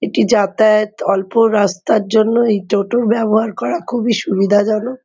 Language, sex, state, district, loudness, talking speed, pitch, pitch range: Bengali, female, West Bengal, Kolkata, -15 LUFS, 130 wpm, 215 Hz, 205-230 Hz